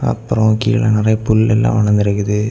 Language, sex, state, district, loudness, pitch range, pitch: Tamil, male, Tamil Nadu, Kanyakumari, -14 LUFS, 105-110 Hz, 110 Hz